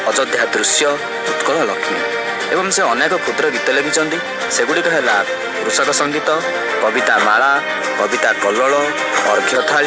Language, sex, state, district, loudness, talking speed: Odia, male, Odisha, Malkangiri, -15 LUFS, 105 wpm